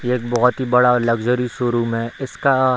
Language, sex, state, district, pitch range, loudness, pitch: Hindi, male, Bihar, Darbhanga, 120-125 Hz, -18 LUFS, 125 Hz